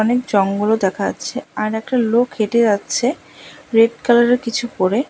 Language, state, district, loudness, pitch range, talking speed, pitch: Bengali, West Bengal, Alipurduar, -17 LUFS, 215-245 Hz, 155 wpm, 230 Hz